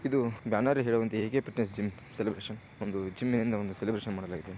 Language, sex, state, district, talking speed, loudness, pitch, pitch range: Kannada, male, Karnataka, Shimoga, 170 wpm, -32 LUFS, 110 Hz, 100-115 Hz